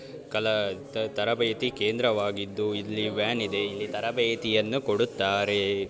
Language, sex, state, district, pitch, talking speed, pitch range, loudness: Kannada, male, Karnataka, Bijapur, 105 Hz, 90 wpm, 100-110 Hz, -27 LUFS